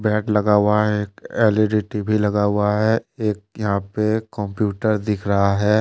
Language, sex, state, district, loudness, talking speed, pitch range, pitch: Hindi, male, Jharkhand, Deoghar, -20 LUFS, 155 wpm, 105-110 Hz, 105 Hz